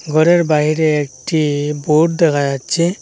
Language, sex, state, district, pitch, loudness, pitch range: Bengali, male, Assam, Hailakandi, 155 Hz, -15 LUFS, 150-165 Hz